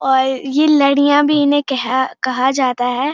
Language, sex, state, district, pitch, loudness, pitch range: Hindi, female, Uttarakhand, Uttarkashi, 265 Hz, -15 LUFS, 260-290 Hz